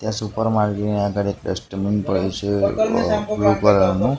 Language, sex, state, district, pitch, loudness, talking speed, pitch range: Gujarati, male, Gujarat, Gandhinagar, 100 Hz, -20 LUFS, 170 wpm, 100-110 Hz